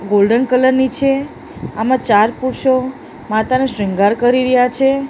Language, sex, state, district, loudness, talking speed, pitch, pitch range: Gujarati, female, Maharashtra, Mumbai Suburban, -14 LUFS, 140 wpm, 255 Hz, 220-260 Hz